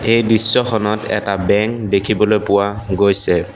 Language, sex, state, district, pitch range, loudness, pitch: Assamese, male, Assam, Sonitpur, 100-110 Hz, -16 LUFS, 105 Hz